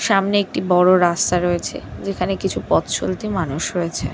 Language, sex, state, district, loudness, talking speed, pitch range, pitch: Bengali, female, West Bengal, Dakshin Dinajpur, -19 LUFS, 160 wpm, 175-195 Hz, 180 Hz